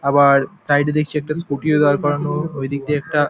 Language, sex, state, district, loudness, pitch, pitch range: Bengali, male, West Bengal, Paschim Medinipur, -18 LUFS, 145 Hz, 140-150 Hz